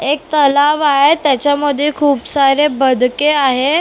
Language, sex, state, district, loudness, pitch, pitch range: Marathi, female, Maharashtra, Mumbai Suburban, -13 LUFS, 285 Hz, 275-295 Hz